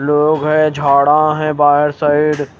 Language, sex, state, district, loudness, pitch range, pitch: Hindi, male, Odisha, Khordha, -13 LUFS, 145-155 Hz, 150 Hz